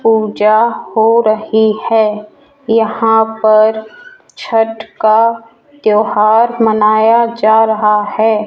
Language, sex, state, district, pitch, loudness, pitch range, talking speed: Hindi, female, Rajasthan, Jaipur, 220 Hz, -11 LUFS, 215-230 Hz, 90 wpm